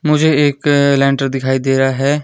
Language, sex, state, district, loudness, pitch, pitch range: Hindi, male, Himachal Pradesh, Shimla, -14 LUFS, 140 Hz, 135-145 Hz